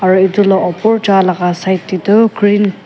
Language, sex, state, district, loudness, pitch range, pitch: Nagamese, female, Nagaland, Kohima, -12 LUFS, 185-205 Hz, 195 Hz